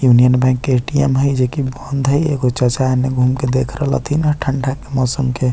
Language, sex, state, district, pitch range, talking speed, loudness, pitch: Bajjika, male, Bihar, Vaishali, 125-140 Hz, 230 wpm, -16 LUFS, 130 Hz